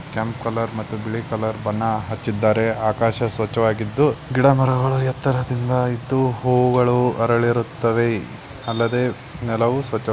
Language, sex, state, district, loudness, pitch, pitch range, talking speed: Kannada, male, Karnataka, Belgaum, -20 LUFS, 115 Hz, 110-125 Hz, 125 wpm